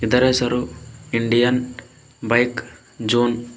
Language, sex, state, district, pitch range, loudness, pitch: Kannada, male, Karnataka, Bidar, 120-125 Hz, -20 LUFS, 120 Hz